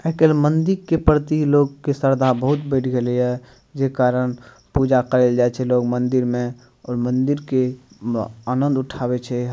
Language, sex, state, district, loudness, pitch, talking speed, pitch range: Maithili, male, Bihar, Madhepura, -20 LUFS, 130 Hz, 185 wpm, 125-140 Hz